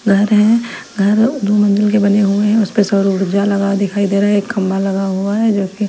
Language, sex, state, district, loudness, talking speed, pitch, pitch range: Hindi, female, Punjab, Fazilka, -14 LUFS, 245 wpm, 200 Hz, 200-210 Hz